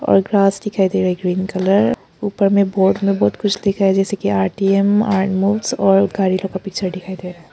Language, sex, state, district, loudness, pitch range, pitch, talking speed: Hindi, female, Arunachal Pradesh, Papum Pare, -17 LUFS, 190-200 Hz, 195 Hz, 240 wpm